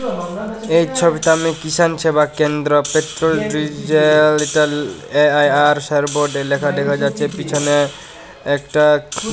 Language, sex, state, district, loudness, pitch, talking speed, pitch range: Bengali, male, Tripura, West Tripura, -16 LUFS, 150 Hz, 110 wpm, 145-160 Hz